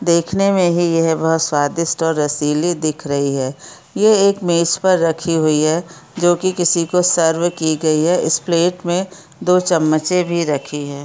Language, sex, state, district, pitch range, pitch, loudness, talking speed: Hindi, female, Chhattisgarh, Jashpur, 155-175 Hz, 165 Hz, -16 LUFS, 185 wpm